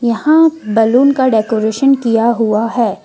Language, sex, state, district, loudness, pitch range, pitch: Hindi, female, Jharkhand, Ranchi, -12 LUFS, 220-270 Hz, 235 Hz